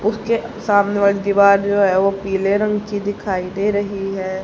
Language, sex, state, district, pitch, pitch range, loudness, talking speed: Hindi, female, Haryana, Jhajjar, 200 Hz, 195-205 Hz, -18 LUFS, 190 wpm